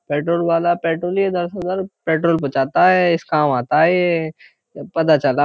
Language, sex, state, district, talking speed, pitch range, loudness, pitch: Hindi, male, Uttar Pradesh, Jyotiba Phule Nagar, 200 wpm, 155-180 Hz, -18 LUFS, 170 Hz